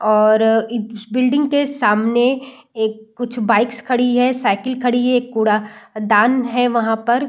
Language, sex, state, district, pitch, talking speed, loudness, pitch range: Hindi, female, Bihar, Saran, 235 Hz, 140 wpm, -17 LUFS, 220-250 Hz